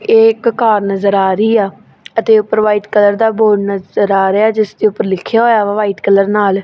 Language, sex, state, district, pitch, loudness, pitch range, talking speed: Punjabi, female, Punjab, Kapurthala, 210 Hz, -12 LUFS, 200-220 Hz, 235 wpm